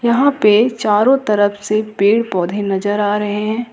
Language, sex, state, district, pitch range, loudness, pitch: Hindi, female, Jharkhand, Ranchi, 205-230 Hz, -15 LUFS, 210 Hz